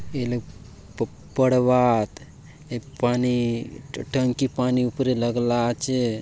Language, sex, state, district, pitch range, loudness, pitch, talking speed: Halbi, male, Chhattisgarh, Bastar, 120-130 Hz, -23 LUFS, 125 Hz, 95 wpm